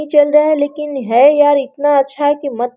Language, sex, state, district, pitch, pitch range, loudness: Hindi, female, Jharkhand, Sahebganj, 290 Hz, 275-295 Hz, -13 LUFS